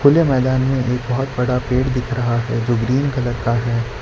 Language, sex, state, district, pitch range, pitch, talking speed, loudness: Hindi, male, Gujarat, Valsad, 120-130 Hz, 125 Hz, 225 wpm, -18 LUFS